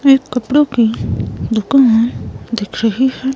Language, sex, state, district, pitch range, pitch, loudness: Hindi, female, Himachal Pradesh, Shimla, 215-265 Hz, 230 Hz, -15 LUFS